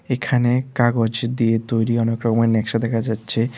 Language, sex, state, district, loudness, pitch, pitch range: Bengali, male, Tripura, West Tripura, -20 LUFS, 115 Hz, 115-120 Hz